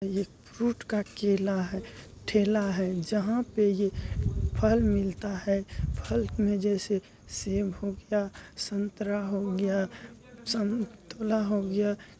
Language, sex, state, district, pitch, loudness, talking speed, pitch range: Hindi, male, Bihar, Bhagalpur, 200 Hz, -30 LUFS, 125 wpm, 195-210 Hz